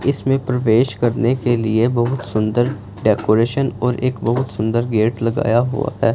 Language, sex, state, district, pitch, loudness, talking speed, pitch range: Hindi, male, Punjab, Fazilka, 120 Hz, -18 LUFS, 155 wpm, 115-130 Hz